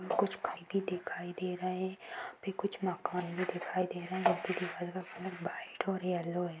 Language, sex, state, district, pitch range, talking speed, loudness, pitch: Hindi, female, Bihar, Sitamarhi, 175-185 Hz, 190 wpm, -37 LUFS, 180 Hz